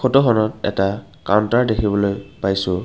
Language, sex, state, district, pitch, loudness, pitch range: Assamese, male, Assam, Kamrup Metropolitan, 105 Hz, -19 LUFS, 95-110 Hz